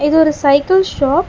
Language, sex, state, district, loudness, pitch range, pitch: Tamil, female, Tamil Nadu, Chennai, -13 LUFS, 285-350 Hz, 305 Hz